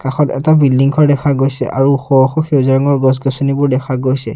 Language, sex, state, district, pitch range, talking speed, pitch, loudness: Assamese, male, Assam, Sonitpur, 130-145 Hz, 195 wpm, 135 Hz, -13 LUFS